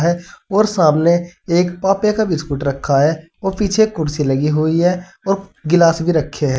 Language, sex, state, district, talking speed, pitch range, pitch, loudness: Hindi, male, Uttar Pradesh, Saharanpur, 175 wpm, 155-195 Hz, 170 Hz, -16 LUFS